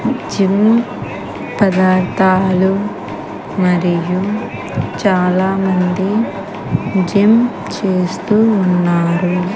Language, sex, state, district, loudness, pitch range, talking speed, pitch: Telugu, female, Andhra Pradesh, Sri Satya Sai, -15 LUFS, 185-205 Hz, 45 wpm, 190 Hz